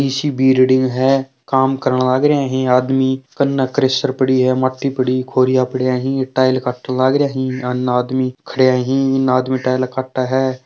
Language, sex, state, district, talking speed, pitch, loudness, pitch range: Marwari, male, Rajasthan, Churu, 195 wpm, 130 Hz, -16 LUFS, 130-135 Hz